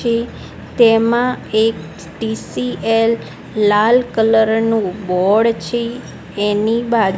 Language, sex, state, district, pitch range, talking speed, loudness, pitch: Gujarati, female, Gujarat, Gandhinagar, 200-230 Hz, 90 wpm, -16 LUFS, 220 Hz